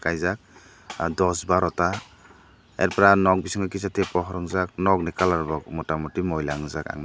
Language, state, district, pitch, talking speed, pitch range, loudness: Kokborok, Tripura, Dhalai, 90 Hz, 180 wpm, 80-95 Hz, -24 LUFS